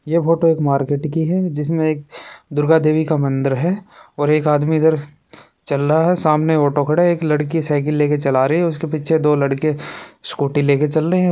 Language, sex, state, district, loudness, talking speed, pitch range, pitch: Hindi, male, Rajasthan, Churu, -17 LUFS, 200 wpm, 145-160 Hz, 155 Hz